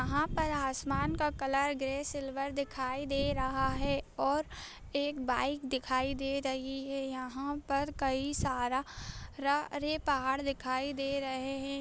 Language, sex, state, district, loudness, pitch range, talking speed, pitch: Hindi, female, Andhra Pradesh, Anantapur, -34 LUFS, 265-280 Hz, 145 wpm, 275 Hz